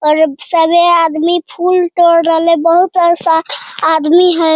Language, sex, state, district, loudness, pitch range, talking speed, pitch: Hindi, male, Bihar, Jamui, -11 LUFS, 325-350 Hz, 145 wpm, 335 Hz